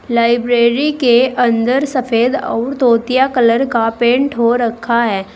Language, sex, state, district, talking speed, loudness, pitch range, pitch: Hindi, female, Uttar Pradesh, Saharanpur, 135 wpm, -14 LUFS, 235-255 Hz, 240 Hz